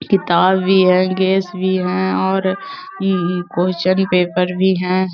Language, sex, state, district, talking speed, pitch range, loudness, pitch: Hindi, female, Bihar, Gaya, 150 wpm, 180-190 Hz, -16 LUFS, 185 Hz